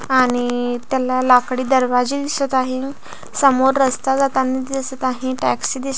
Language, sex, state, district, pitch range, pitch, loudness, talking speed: Marathi, female, Maharashtra, Pune, 255-270 Hz, 260 Hz, -18 LUFS, 130 wpm